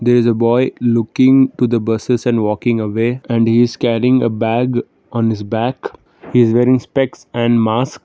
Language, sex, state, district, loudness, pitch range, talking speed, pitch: English, male, Karnataka, Bangalore, -15 LUFS, 115-125 Hz, 170 wpm, 120 Hz